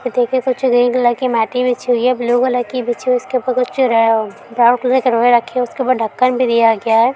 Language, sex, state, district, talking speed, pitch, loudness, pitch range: Hindi, female, Andhra Pradesh, Guntur, 150 wpm, 250 Hz, -15 LUFS, 235-255 Hz